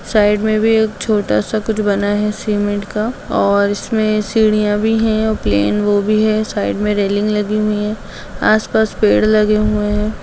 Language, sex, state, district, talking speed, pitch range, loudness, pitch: Hindi, female, Uttar Pradesh, Jalaun, 175 wpm, 205-215 Hz, -15 LUFS, 210 Hz